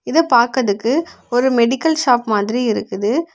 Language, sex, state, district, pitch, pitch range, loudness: Tamil, female, Tamil Nadu, Kanyakumari, 245 Hz, 225-275 Hz, -16 LUFS